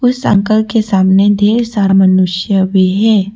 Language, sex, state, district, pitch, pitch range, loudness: Hindi, female, Arunachal Pradesh, Papum Pare, 200 Hz, 190-215 Hz, -11 LUFS